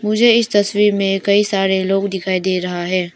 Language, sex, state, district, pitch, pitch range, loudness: Hindi, female, Arunachal Pradesh, Papum Pare, 195 Hz, 185-205 Hz, -16 LUFS